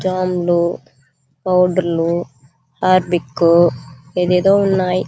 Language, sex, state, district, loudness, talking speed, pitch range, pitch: Telugu, female, Andhra Pradesh, Chittoor, -16 LUFS, 95 wpm, 155-185 Hz, 175 Hz